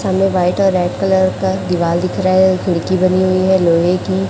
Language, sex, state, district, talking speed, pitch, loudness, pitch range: Hindi, female, Chhattisgarh, Raipur, 225 wpm, 185 Hz, -14 LUFS, 180-190 Hz